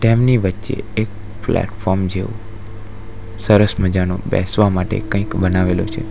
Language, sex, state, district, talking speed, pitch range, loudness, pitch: Gujarati, male, Gujarat, Valsad, 120 wpm, 95-110 Hz, -18 LUFS, 105 Hz